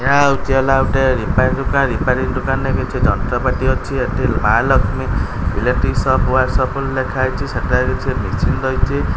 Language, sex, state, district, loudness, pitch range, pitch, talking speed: Odia, male, Odisha, Khordha, -17 LUFS, 105-135 Hz, 130 Hz, 165 wpm